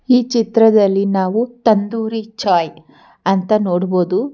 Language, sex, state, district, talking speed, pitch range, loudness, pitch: Kannada, female, Karnataka, Bangalore, 95 wpm, 185-225 Hz, -16 LUFS, 210 Hz